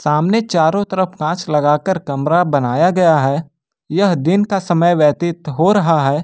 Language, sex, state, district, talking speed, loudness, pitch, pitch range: Hindi, male, Jharkhand, Ranchi, 165 wpm, -15 LUFS, 170 Hz, 150-185 Hz